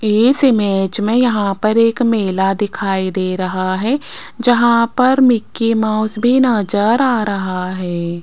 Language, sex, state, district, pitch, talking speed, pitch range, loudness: Hindi, female, Rajasthan, Jaipur, 215 Hz, 145 wpm, 195-240 Hz, -15 LUFS